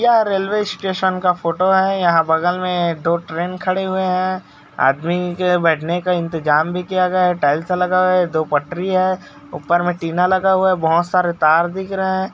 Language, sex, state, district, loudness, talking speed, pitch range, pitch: Hindi, male, Chhattisgarh, Raigarh, -17 LUFS, 200 wpm, 170-185 Hz, 180 Hz